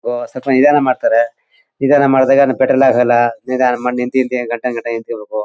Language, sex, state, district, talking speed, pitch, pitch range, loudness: Kannada, male, Karnataka, Mysore, 155 wpm, 125 Hz, 120-130 Hz, -14 LUFS